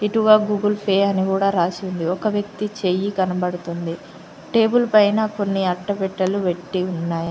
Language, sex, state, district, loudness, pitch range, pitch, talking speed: Telugu, female, Telangana, Mahabubabad, -20 LUFS, 180-210 Hz, 195 Hz, 140 wpm